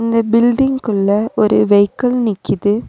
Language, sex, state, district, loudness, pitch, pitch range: Tamil, female, Tamil Nadu, Nilgiris, -14 LUFS, 225 Hz, 205-240 Hz